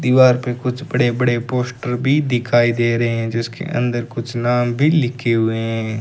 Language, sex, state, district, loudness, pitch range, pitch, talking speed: Hindi, male, Rajasthan, Bikaner, -18 LUFS, 120-125 Hz, 120 Hz, 190 wpm